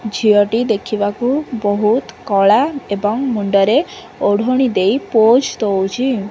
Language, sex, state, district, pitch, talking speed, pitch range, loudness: Odia, female, Odisha, Khordha, 220 Hz, 95 wpm, 205-255 Hz, -15 LUFS